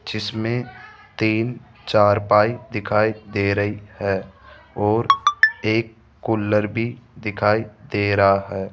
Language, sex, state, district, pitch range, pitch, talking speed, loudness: Hindi, male, Rajasthan, Jaipur, 105-115 Hz, 105 Hz, 110 wpm, -20 LUFS